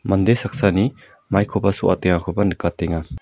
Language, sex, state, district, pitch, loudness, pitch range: Garo, male, Meghalaya, South Garo Hills, 100 Hz, -20 LUFS, 90-105 Hz